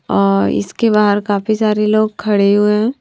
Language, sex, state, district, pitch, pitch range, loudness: Hindi, female, Punjab, Pathankot, 210 Hz, 195-215 Hz, -14 LUFS